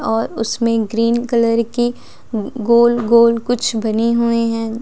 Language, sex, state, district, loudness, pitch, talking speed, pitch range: Hindi, female, Delhi, New Delhi, -16 LUFS, 230 Hz, 135 wpm, 225-235 Hz